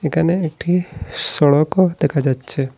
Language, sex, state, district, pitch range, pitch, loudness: Bengali, male, Assam, Hailakandi, 140-170 Hz, 155 Hz, -17 LUFS